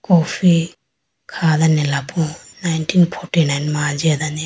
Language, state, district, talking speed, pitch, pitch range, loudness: Idu Mishmi, Arunachal Pradesh, Lower Dibang Valley, 95 wpm, 160 Hz, 150-170 Hz, -17 LUFS